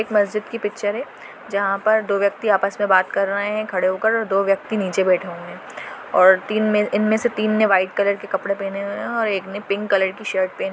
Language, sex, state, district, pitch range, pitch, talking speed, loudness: Hindi, female, Goa, North and South Goa, 195-215 Hz, 200 Hz, 245 wpm, -20 LUFS